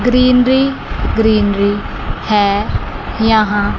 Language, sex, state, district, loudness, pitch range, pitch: Hindi, female, Chandigarh, Chandigarh, -14 LUFS, 205-250 Hz, 220 Hz